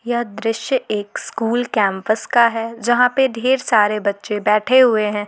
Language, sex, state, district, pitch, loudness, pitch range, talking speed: Hindi, female, Jharkhand, Garhwa, 225 Hz, -17 LUFS, 210-245 Hz, 170 wpm